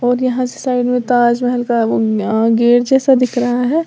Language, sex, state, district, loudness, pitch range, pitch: Hindi, female, Uttar Pradesh, Lalitpur, -14 LUFS, 240-255 Hz, 245 Hz